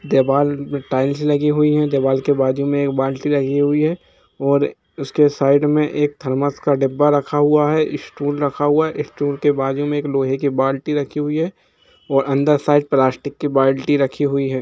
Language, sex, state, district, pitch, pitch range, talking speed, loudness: Hindi, male, Jharkhand, Jamtara, 145 Hz, 135-145 Hz, 200 wpm, -18 LUFS